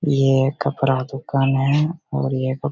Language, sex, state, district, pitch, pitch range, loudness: Hindi, male, Bihar, Begusarai, 135 Hz, 135-145 Hz, -20 LUFS